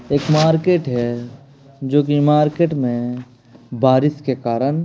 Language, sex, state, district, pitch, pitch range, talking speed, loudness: Hindi, male, Bihar, Patna, 135 Hz, 125-150 Hz, 135 wpm, -17 LUFS